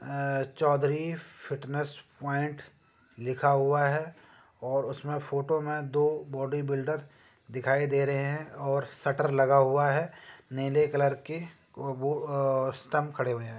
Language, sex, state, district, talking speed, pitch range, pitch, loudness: Hindi, male, Uttar Pradesh, Jyotiba Phule Nagar, 140 wpm, 135-150 Hz, 140 Hz, -29 LUFS